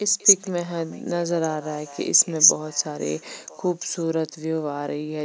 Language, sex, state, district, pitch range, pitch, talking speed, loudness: Hindi, female, Chandigarh, Chandigarh, 150-175 Hz, 160 Hz, 195 wpm, -22 LUFS